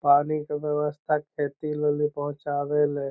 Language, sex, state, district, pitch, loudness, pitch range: Magahi, male, Bihar, Lakhisarai, 150 Hz, -26 LUFS, 145-150 Hz